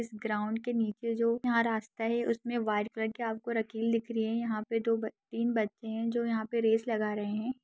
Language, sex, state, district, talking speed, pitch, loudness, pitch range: Hindi, female, Bihar, Saharsa, 235 wpm, 225 Hz, -32 LUFS, 220-230 Hz